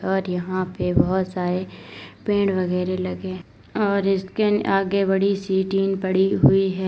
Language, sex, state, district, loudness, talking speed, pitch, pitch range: Hindi, female, Uttar Pradesh, Lalitpur, -22 LUFS, 150 wpm, 190 Hz, 180-195 Hz